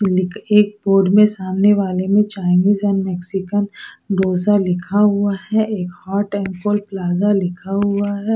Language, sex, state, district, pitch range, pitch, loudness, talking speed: Hindi, female, Odisha, Sambalpur, 190-205 Hz, 200 Hz, -17 LUFS, 165 wpm